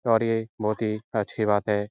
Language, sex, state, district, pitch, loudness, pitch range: Hindi, male, Uttar Pradesh, Etah, 110 Hz, -26 LUFS, 105-115 Hz